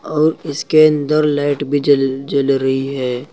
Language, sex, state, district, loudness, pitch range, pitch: Hindi, male, Uttar Pradesh, Saharanpur, -16 LUFS, 135-150 Hz, 145 Hz